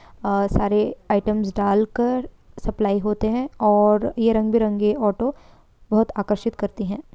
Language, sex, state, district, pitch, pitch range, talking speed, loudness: Hindi, female, Bihar, Samastipur, 210 Hz, 205-225 Hz, 135 wpm, -21 LUFS